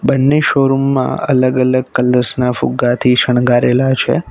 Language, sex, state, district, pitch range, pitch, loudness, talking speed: Gujarati, male, Gujarat, Navsari, 125-135 Hz, 130 Hz, -13 LUFS, 140 wpm